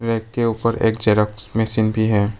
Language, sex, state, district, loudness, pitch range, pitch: Hindi, male, Arunachal Pradesh, Papum Pare, -18 LUFS, 105-115 Hz, 110 Hz